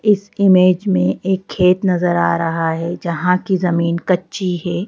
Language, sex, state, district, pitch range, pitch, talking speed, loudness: Hindi, female, Madhya Pradesh, Bhopal, 170-185 Hz, 180 Hz, 170 wpm, -16 LUFS